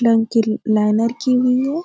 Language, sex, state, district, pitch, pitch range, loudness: Hindi, female, Bihar, Gopalganj, 230 Hz, 225-250 Hz, -17 LUFS